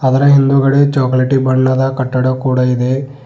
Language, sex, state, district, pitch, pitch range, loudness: Kannada, male, Karnataka, Bidar, 130 Hz, 130-135 Hz, -12 LUFS